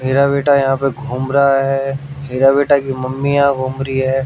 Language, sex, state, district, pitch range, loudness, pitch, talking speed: Hindi, male, Haryana, Jhajjar, 135-140 Hz, -15 LUFS, 135 Hz, 225 wpm